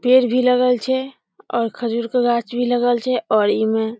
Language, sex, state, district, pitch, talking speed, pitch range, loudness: Maithili, female, Bihar, Samastipur, 245 Hz, 210 wpm, 235-250 Hz, -18 LUFS